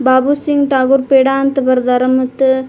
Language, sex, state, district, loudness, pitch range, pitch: Kannada, female, Karnataka, Dharwad, -12 LUFS, 260-275 Hz, 265 Hz